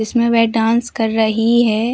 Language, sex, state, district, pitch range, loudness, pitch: Hindi, female, Uttar Pradesh, Hamirpur, 220-235 Hz, -15 LUFS, 230 Hz